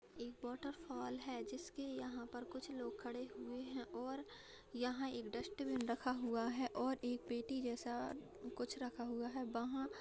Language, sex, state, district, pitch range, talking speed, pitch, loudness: Hindi, female, Bihar, Begusarai, 240-265 Hz, 160 wpm, 250 Hz, -45 LUFS